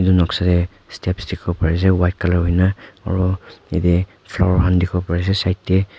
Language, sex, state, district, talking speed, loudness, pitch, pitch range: Nagamese, male, Nagaland, Kohima, 180 wpm, -19 LUFS, 90 Hz, 90-95 Hz